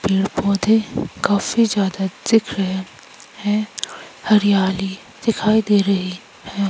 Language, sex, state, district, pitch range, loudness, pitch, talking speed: Hindi, female, Himachal Pradesh, Shimla, 195-215 Hz, -19 LUFS, 200 Hz, 100 wpm